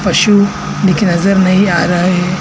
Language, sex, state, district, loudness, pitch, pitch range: Hindi, male, Maharashtra, Mumbai Suburban, -11 LUFS, 185 Hz, 180-195 Hz